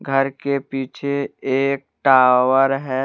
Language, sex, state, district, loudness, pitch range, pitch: Hindi, male, Jharkhand, Deoghar, -18 LUFS, 130-140 Hz, 135 Hz